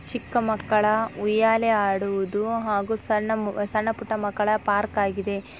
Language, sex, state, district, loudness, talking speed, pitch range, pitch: Kannada, female, Karnataka, Raichur, -24 LUFS, 130 wpm, 205-220 Hz, 215 Hz